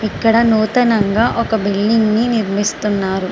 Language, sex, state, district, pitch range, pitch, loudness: Telugu, female, Andhra Pradesh, Srikakulam, 205-230 Hz, 215 Hz, -15 LUFS